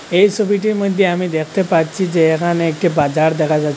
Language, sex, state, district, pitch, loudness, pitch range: Bengali, male, Assam, Hailakandi, 170 Hz, -16 LUFS, 160-195 Hz